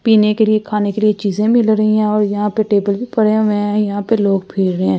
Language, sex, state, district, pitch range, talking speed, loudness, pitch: Hindi, female, Delhi, New Delhi, 205-215 Hz, 300 wpm, -15 LUFS, 210 Hz